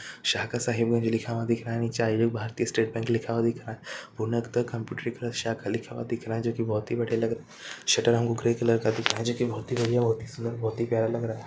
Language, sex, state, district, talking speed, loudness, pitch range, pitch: Hindi, male, Jharkhand, Sahebganj, 295 wpm, -28 LUFS, 115-120 Hz, 115 Hz